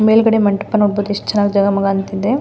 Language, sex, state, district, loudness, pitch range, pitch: Kannada, female, Karnataka, Mysore, -15 LUFS, 200-215 Hz, 205 Hz